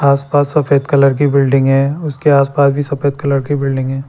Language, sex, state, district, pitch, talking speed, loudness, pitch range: Hindi, male, Chandigarh, Chandigarh, 140 Hz, 235 wpm, -13 LUFS, 135-145 Hz